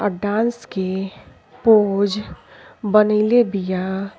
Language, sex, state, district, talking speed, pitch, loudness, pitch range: Bhojpuri, female, Uttar Pradesh, Deoria, 85 wpm, 205 Hz, -19 LUFS, 195-215 Hz